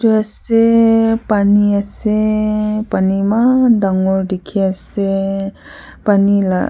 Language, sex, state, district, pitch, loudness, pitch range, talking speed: Nagamese, female, Nagaland, Kohima, 205 Hz, -14 LUFS, 195-220 Hz, 90 wpm